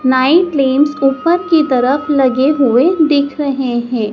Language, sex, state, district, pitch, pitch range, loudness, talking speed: Hindi, male, Madhya Pradesh, Dhar, 275 Hz, 260-305 Hz, -13 LUFS, 145 wpm